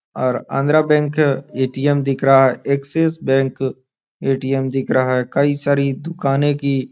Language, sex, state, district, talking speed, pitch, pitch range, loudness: Hindi, male, Bihar, Araria, 155 wpm, 135 Hz, 135-145 Hz, -18 LUFS